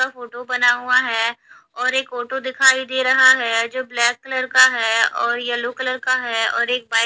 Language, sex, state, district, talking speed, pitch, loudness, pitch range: Hindi, female, Haryana, Charkhi Dadri, 210 wpm, 250 Hz, -18 LUFS, 235-260 Hz